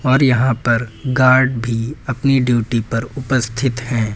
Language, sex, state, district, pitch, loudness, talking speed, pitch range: Hindi, male, Uttar Pradesh, Lucknow, 125 Hz, -17 LUFS, 145 wpm, 115-130 Hz